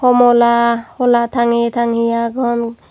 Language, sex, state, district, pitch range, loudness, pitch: Chakma, female, Tripura, Dhalai, 235-240 Hz, -14 LUFS, 235 Hz